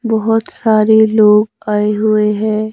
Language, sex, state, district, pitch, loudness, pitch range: Hindi, male, Himachal Pradesh, Shimla, 215 Hz, -12 LUFS, 210-220 Hz